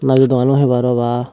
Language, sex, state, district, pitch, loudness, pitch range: Chakma, female, Tripura, West Tripura, 125 Hz, -14 LUFS, 125-135 Hz